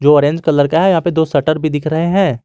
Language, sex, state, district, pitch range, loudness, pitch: Hindi, male, Jharkhand, Garhwa, 145-165 Hz, -14 LUFS, 155 Hz